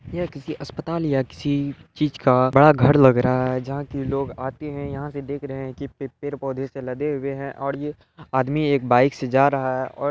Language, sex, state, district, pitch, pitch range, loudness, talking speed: Hindi, male, Bihar, Araria, 140 Hz, 130-145 Hz, -22 LUFS, 230 wpm